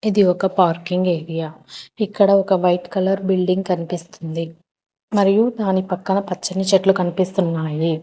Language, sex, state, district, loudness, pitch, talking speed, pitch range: Telugu, female, Telangana, Hyderabad, -19 LUFS, 185 Hz, 120 wpm, 170-195 Hz